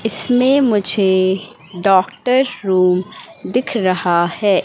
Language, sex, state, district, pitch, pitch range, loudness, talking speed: Hindi, female, Madhya Pradesh, Katni, 195 Hz, 185-245 Hz, -16 LUFS, 90 wpm